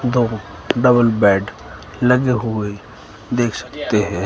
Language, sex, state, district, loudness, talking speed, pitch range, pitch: Hindi, male, Himachal Pradesh, Shimla, -18 LUFS, 110 wpm, 100-125 Hz, 110 Hz